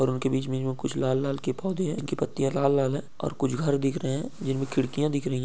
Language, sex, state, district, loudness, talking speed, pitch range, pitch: Hindi, male, Bihar, Supaul, -28 LUFS, 265 wpm, 130-140 Hz, 135 Hz